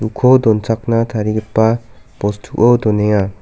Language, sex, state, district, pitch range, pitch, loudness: Garo, male, Meghalaya, South Garo Hills, 105-115 Hz, 110 Hz, -15 LUFS